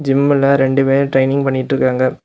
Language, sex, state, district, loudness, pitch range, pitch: Tamil, male, Tamil Nadu, Kanyakumari, -14 LUFS, 130-140 Hz, 135 Hz